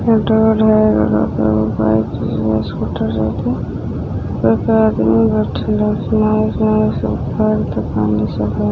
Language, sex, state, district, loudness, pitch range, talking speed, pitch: Maithili, female, Bihar, Samastipur, -16 LUFS, 105-115 Hz, 160 wpm, 110 Hz